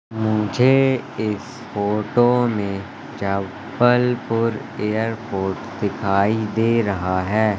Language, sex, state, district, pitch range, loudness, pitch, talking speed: Hindi, male, Madhya Pradesh, Katni, 100-120 Hz, -20 LUFS, 110 Hz, 80 wpm